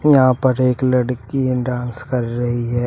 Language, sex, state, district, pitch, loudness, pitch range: Hindi, male, Uttar Pradesh, Shamli, 125 Hz, -18 LUFS, 120-130 Hz